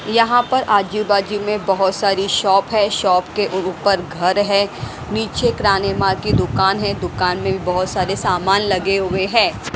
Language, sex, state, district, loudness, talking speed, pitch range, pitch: Hindi, female, Haryana, Rohtak, -17 LUFS, 180 wpm, 190-205 Hz, 195 Hz